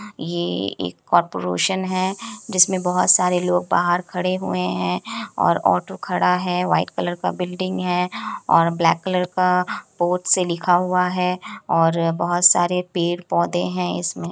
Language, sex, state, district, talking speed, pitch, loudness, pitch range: Hindi, female, Bihar, Kishanganj, 155 wpm, 180 Hz, -20 LUFS, 165-180 Hz